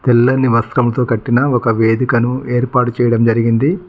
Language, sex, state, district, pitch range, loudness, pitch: Telugu, male, Telangana, Mahabubabad, 115-125 Hz, -14 LUFS, 120 Hz